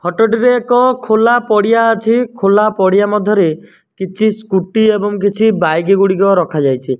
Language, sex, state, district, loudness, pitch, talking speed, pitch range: Odia, male, Odisha, Nuapada, -12 LUFS, 210 Hz, 165 wpm, 190-225 Hz